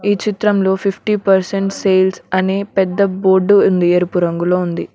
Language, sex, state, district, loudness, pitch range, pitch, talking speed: Telugu, female, Telangana, Mahabubabad, -15 LUFS, 185-200 Hz, 190 Hz, 145 wpm